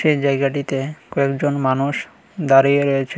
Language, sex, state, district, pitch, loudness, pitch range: Bengali, male, Tripura, West Tripura, 140 Hz, -18 LUFS, 135-145 Hz